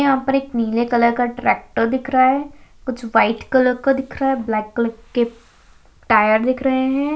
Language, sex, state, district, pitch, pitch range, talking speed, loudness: Hindi, female, Bihar, Jahanabad, 250 Hz, 230-270 Hz, 200 wpm, -18 LUFS